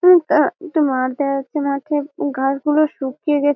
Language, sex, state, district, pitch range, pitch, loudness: Bengali, female, West Bengal, Malda, 275-305 Hz, 290 Hz, -18 LUFS